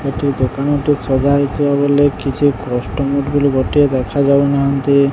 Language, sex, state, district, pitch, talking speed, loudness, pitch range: Odia, male, Odisha, Sambalpur, 140 Hz, 115 wpm, -15 LUFS, 135-145 Hz